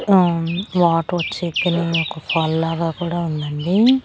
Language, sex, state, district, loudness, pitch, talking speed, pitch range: Telugu, female, Andhra Pradesh, Annamaya, -19 LUFS, 170 Hz, 135 wpm, 165-175 Hz